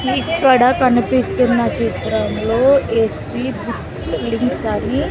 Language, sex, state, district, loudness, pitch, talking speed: Telugu, female, Andhra Pradesh, Sri Satya Sai, -17 LUFS, 240 Hz, 95 wpm